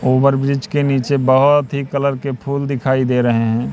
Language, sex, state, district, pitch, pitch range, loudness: Hindi, male, Madhya Pradesh, Katni, 135 Hz, 130-140 Hz, -16 LUFS